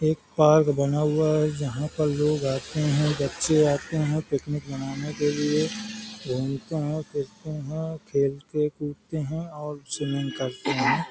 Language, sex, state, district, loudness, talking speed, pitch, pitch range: Hindi, male, Uttar Pradesh, Hamirpur, -26 LUFS, 155 wpm, 150 Hz, 140-155 Hz